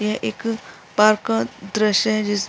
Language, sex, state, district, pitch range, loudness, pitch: Hindi, female, Uttar Pradesh, Jyotiba Phule Nagar, 200-215 Hz, -20 LUFS, 210 Hz